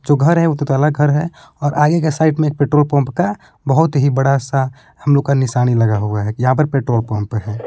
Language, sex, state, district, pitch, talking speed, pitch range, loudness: Hindi, male, Jharkhand, Palamu, 140 Hz, 265 wpm, 125-150 Hz, -16 LUFS